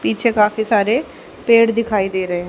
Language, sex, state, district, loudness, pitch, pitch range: Hindi, female, Haryana, Charkhi Dadri, -16 LUFS, 210 Hz, 190-230 Hz